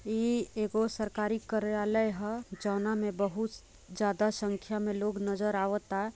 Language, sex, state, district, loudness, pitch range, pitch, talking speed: Bhojpuri, female, Bihar, Gopalganj, -32 LUFS, 205-220 Hz, 210 Hz, 135 wpm